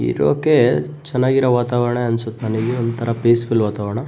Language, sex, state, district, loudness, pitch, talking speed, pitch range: Kannada, male, Karnataka, Bellary, -18 LUFS, 115 Hz, 115 wpm, 110-120 Hz